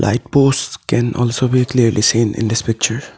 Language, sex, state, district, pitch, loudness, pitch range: English, male, Assam, Sonitpur, 120 Hz, -16 LUFS, 115-130 Hz